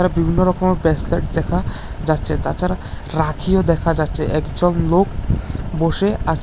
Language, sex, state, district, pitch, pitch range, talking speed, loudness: Bengali, male, Tripura, West Tripura, 170 Hz, 160-185 Hz, 120 wpm, -19 LUFS